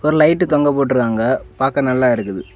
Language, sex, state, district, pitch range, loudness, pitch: Tamil, male, Tamil Nadu, Kanyakumari, 115-150 Hz, -16 LUFS, 135 Hz